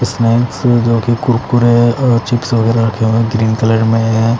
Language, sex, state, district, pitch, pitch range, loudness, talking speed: Hindi, male, Chandigarh, Chandigarh, 115 Hz, 115-120 Hz, -12 LUFS, 220 wpm